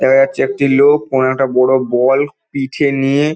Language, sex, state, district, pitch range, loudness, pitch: Bengali, male, West Bengal, North 24 Parganas, 130-140 Hz, -14 LUFS, 135 Hz